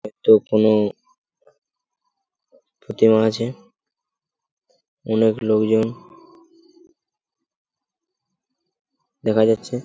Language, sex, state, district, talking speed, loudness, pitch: Bengali, male, West Bengal, Purulia, 50 wpm, -19 LUFS, 125 Hz